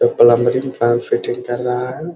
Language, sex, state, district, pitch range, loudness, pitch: Hindi, male, Bihar, Muzaffarpur, 120-135 Hz, -16 LUFS, 125 Hz